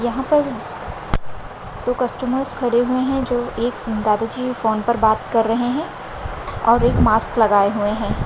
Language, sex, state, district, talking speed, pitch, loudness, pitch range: Hindi, female, Maharashtra, Aurangabad, 160 wpm, 240 Hz, -19 LUFS, 220-255 Hz